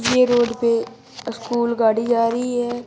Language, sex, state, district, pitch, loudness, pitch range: Hindi, female, Uttar Pradesh, Shamli, 235 Hz, -19 LUFS, 230-240 Hz